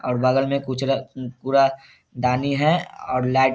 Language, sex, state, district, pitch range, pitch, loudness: Hindi, male, Bihar, Saharsa, 130-135 Hz, 130 Hz, -22 LUFS